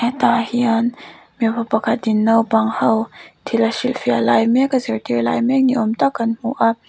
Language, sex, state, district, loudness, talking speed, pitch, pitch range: Mizo, female, Mizoram, Aizawl, -18 LUFS, 190 wpm, 230 Hz, 220-240 Hz